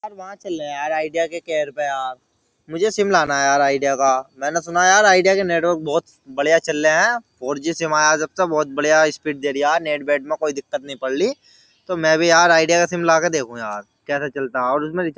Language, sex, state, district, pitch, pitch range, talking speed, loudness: Hindi, male, Uttar Pradesh, Jyotiba Phule Nagar, 155 Hz, 140-170 Hz, 250 wpm, -18 LUFS